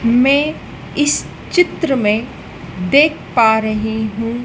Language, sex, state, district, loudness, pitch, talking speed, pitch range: Hindi, female, Madhya Pradesh, Dhar, -15 LUFS, 235 Hz, 110 wpm, 220-290 Hz